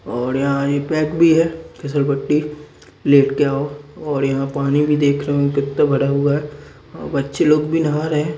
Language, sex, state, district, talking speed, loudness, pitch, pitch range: Hindi, male, Bihar, Araria, 200 wpm, -18 LUFS, 145 Hz, 140-150 Hz